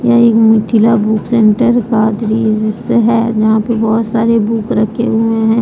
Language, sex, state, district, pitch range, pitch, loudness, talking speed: Hindi, female, Jharkhand, Deoghar, 220-230 Hz, 225 Hz, -12 LUFS, 170 wpm